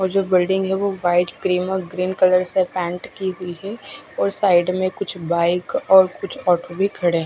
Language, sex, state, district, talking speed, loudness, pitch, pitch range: Hindi, female, Odisha, Khordha, 225 wpm, -19 LUFS, 185 Hz, 180-190 Hz